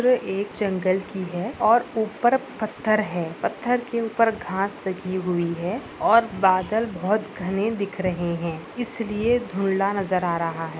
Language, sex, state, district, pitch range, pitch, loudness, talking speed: Hindi, female, Maharashtra, Nagpur, 185-225 Hz, 195 Hz, -24 LUFS, 155 wpm